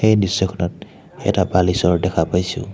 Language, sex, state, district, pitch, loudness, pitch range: Assamese, male, Assam, Hailakandi, 90 Hz, -19 LUFS, 90-100 Hz